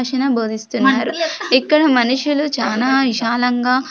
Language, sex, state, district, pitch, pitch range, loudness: Telugu, female, Andhra Pradesh, Sri Satya Sai, 255 Hz, 240-270 Hz, -16 LUFS